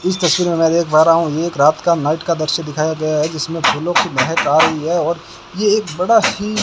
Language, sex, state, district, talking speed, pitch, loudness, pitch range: Hindi, male, Rajasthan, Bikaner, 270 wpm, 165 Hz, -15 LUFS, 155-180 Hz